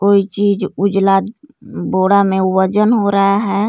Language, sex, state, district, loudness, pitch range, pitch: Hindi, female, Jharkhand, Garhwa, -14 LUFS, 195-205 Hz, 200 Hz